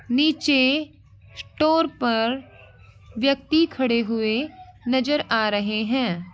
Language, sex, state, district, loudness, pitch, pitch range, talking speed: Hindi, female, Uttar Pradesh, Ghazipur, -22 LUFS, 255 Hz, 220-295 Hz, 95 wpm